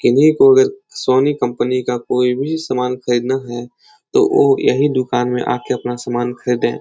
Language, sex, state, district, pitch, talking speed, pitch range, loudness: Hindi, male, Uttar Pradesh, Etah, 125 Hz, 175 wpm, 125-160 Hz, -16 LUFS